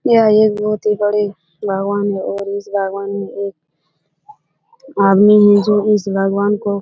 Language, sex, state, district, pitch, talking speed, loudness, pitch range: Hindi, female, Bihar, Jahanabad, 200 Hz, 140 wpm, -15 LUFS, 195-210 Hz